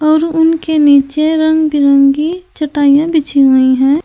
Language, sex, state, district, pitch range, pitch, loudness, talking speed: Hindi, female, Uttar Pradesh, Saharanpur, 280-315 Hz, 305 Hz, -11 LUFS, 135 wpm